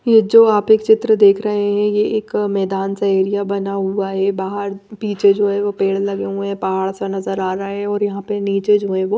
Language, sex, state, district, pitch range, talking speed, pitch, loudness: Hindi, female, Maharashtra, Mumbai Suburban, 195-210 Hz, 250 wpm, 200 Hz, -17 LUFS